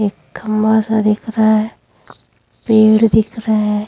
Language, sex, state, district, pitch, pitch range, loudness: Hindi, female, Uttar Pradesh, Hamirpur, 215 Hz, 210-220 Hz, -14 LUFS